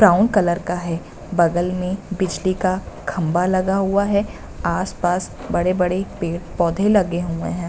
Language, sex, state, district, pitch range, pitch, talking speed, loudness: Hindi, female, Bihar, Bhagalpur, 175-190 Hz, 180 Hz, 140 wpm, -20 LUFS